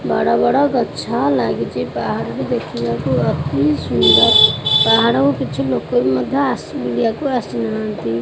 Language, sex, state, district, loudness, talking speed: Odia, female, Odisha, Khordha, -16 LUFS, 130 wpm